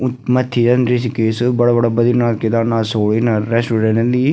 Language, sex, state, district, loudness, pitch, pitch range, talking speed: Garhwali, female, Uttarakhand, Tehri Garhwal, -15 LUFS, 120 Hz, 115-125 Hz, 165 wpm